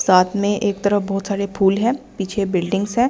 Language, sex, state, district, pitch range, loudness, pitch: Hindi, female, Delhi, New Delhi, 195-205 Hz, -19 LUFS, 200 Hz